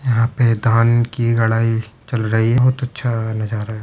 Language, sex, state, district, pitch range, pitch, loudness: Hindi, male, Uttar Pradesh, Budaun, 110-120 Hz, 115 Hz, -17 LUFS